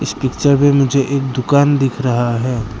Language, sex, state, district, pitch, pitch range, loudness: Hindi, male, Arunachal Pradesh, Lower Dibang Valley, 135 Hz, 125-140 Hz, -15 LUFS